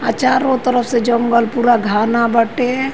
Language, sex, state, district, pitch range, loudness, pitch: Bhojpuri, female, Uttar Pradesh, Ghazipur, 235-255 Hz, -15 LUFS, 240 Hz